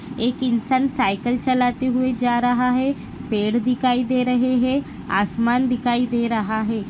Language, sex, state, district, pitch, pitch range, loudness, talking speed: Hindi, female, Maharashtra, Dhule, 245 Hz, 235-255 Hz, -21 LUFS, 155 wpm